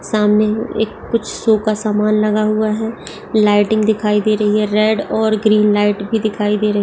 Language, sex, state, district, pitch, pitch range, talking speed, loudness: Hindi, female, Uttar Pradesh, Etah, 215 Hz, 210-215 Hz, 200 wpm, -15 LUFS